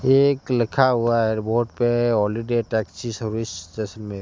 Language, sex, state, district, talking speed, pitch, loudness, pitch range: Hindi, male, Rajasthan, Jaisalmer, 130 wpm, 115 Hz, -22 LUFS, 110-120 Hz